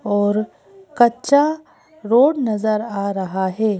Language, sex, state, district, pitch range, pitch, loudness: Hindi, female, Madhya Pradesh, Bhopal, 205-285 Hz, 220 Hz, -18 LUFS